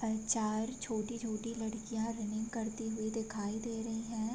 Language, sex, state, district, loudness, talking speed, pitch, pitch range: Hindi, female, Uttar Pradesh, Varanasi, -38 LUFS, 150 wpm, 225 Hz, 220-230 Hz